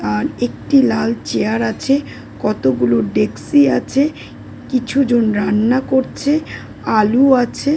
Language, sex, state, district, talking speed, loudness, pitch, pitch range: Bengali, female, West Bengal, Dakshin Dinajpur, 110 wpm, -16 LUFS, 245 Hz, 205-275 Hz